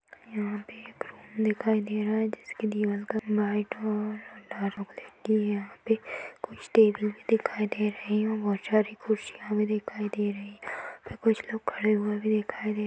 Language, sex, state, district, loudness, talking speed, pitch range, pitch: Hindi, female, Chhattisgarh, Balrampur, -29 LUFS, 55 wpm, 210-220 Hz, 215 Hz